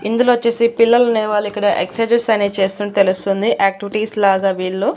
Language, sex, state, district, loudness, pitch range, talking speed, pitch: Telugu, female, Andhra Pradesh, Annamaya, -16 LUFS, 195-230 Hz, 120 wpm, 205 Hz